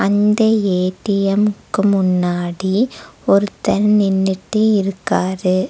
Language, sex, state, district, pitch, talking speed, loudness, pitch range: Tamil, female, Tamil Nadu, Nilgiris, 195 Hz, 65 wpm, -17 LUFS, 185-210 Hz